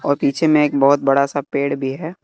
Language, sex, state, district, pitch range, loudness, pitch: Hindi, male, Bihar, West Champaran, 140-150 Hz, -17 LUFS, 140 Hz